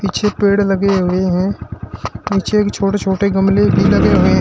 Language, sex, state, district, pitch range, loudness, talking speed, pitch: Hindi, male, Uttar Pradesh, Shamli, 180-200 Hz, -14 LUFS, 175 wpm, 195 Hz